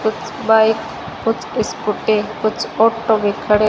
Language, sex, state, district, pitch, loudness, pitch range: Hindi, female, Rajasthan, Bikaner, 220 Hz, -17 LUFS, 215-225 Hz